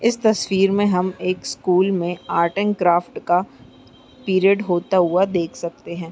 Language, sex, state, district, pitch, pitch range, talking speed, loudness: Hindi, female, Bihar, Araria, 185 Hz, 175-195 Hz, 165 wpm, -19 LUFS